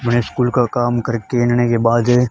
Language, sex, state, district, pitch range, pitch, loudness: Hindi, female, Haryana, Charkhi Dadri, 120-125 Hz, 120 Hz, -16 LUFS